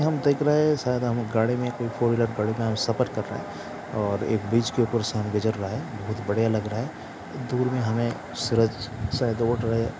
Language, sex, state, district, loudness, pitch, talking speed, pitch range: Hindi, male, Bihar, Saran, -26 LUFS, 115 Hz, 245 wpm, 110-120 Hz